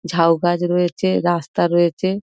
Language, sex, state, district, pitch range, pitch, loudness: Bengali, female, West Bengal, Dakshin Dinajpur, 170-180 Hz, 175 Hz, -18 LUFS